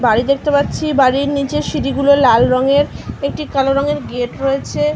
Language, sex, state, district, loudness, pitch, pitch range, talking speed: Bengali, female, West Bengal, North 24 Parganas, -15 LUFS, 275 Hz, 245-285 Hz, 180 wpm